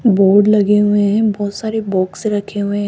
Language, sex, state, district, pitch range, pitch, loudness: Hindi, female, Rajasthan, Jaipur, 200-215 Hz, 205 Hz, -15 LUFS